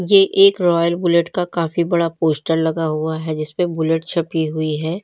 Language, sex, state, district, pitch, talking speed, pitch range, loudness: Hindi, female, Uttar Pradesh, Lalitpur, 165 Hz, 200 wpm, 160-175 Hz, -18 LUFS